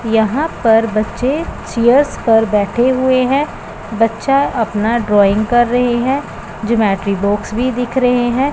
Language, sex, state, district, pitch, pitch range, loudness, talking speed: Hindi, female, Punjab, Pathankot, 235 Hz, 220-255 Hz, -14 LUFS, 140 wpm